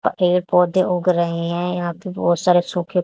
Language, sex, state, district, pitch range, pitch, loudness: Hindi, female, Haryana, Charkhi Dadri, 175-180 Hz, 180 Hz, -19 LUFS